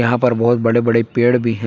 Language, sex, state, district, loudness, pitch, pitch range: Hindi, male, Jharkhand, Palamu, -15 LUFS, 120 Hz, 115-120 Hz